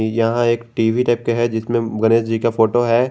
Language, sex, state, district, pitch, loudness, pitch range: Hindi, male, Jharkhand, Garhwa, 115 Hz, -17 LUFS, 115-120 Hz